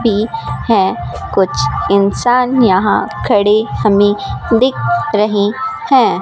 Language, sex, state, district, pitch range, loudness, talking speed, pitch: Hindi, female, Rajasthan, Bikaner, 200-245 Hz, -13 LUFS, 95 wpm, 210 Hz